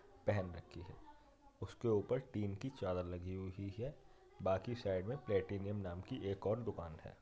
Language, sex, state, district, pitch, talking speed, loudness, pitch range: Hindi, male, Uttar Pradesh, Jyotiba Phule Nagar, 100 Hz, 175 wpm, -42 LUFS, 95-125 Hz